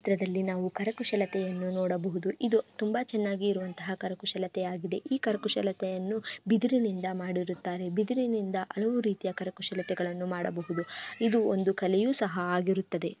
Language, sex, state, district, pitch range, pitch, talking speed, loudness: Kannada, female, Karnataka, Gulbarga, 185-215 Hz, 190 Hz, 105 wpm, -31 LUFS